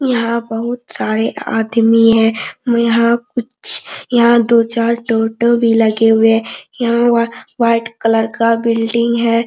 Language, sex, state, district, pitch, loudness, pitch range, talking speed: Hindi, female, Jharkhand, Sahebganj, 230 Hz, -14 LUFS, 225-235 Hz, 140 wpm